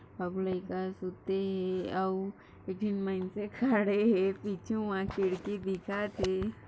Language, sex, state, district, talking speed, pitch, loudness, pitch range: Hindi, female, Maharashtra, Dhule, 80 wpm, 195 Hz, -33 LUFS, 185-205 Hz